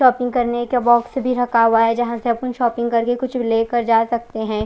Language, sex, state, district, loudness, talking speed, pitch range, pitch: Hindi, female, Odisha, Khordha, -18 LUFS, 230 wpm, 230-245 Hz, 240 Hz